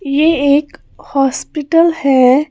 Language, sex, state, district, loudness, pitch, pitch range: Hindi, female, Haryana, Jhajjar, -13 LUFS, 290 Hz, 275-320 Hz